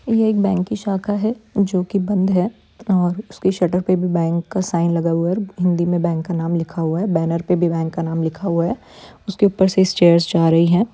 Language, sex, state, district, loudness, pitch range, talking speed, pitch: Hindi, female, Bihar, Supaul, -18 LUFS, 170-195 Hz, 250 wpm, 180 Hz